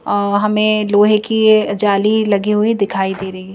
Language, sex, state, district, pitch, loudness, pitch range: Hindi, female, Madhya Pradesh, Bhopal, 210 Hz, -14 LUFS, 200-215 Hz